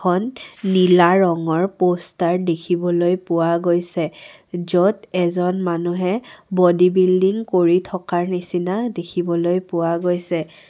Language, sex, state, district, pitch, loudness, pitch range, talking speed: Assamese, female, Assam, Kamrup Metropolitan, 180 Hz, -19 LUFS, 175-185 Hz, 100 wpm